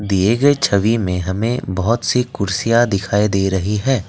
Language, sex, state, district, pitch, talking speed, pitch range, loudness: Hindi, male, Assam, Kamrup Metropolitan, 105 Hz, 175 wpm, 95-120 Hz, -17 LUFS